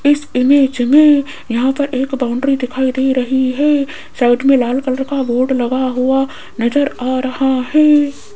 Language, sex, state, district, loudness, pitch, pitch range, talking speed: Hindi, female, Rajasthan, Jaipur, -14 LUFS, 265 Hz, 255-280 Hz, 165 wpm